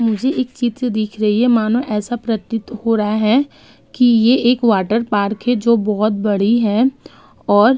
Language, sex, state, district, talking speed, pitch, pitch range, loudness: Hindi, female, Uttar Pradesh, Budaun, 185 wpm, 230 Hz, 215-245 Hz, -16 LUFS